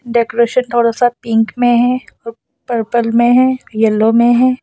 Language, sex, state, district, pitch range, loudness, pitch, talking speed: Hindi, male, Assam, Sonitpur, 230-245 Hz, -13 LUFS, 235 Hz, 155 wpm